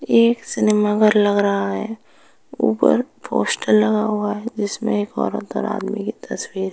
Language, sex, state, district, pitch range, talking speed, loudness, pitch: Hindi, female, Uttar Pradesh, Etah, 205-220 Hz, 180 wpm, -19 LUFS, 210 Hz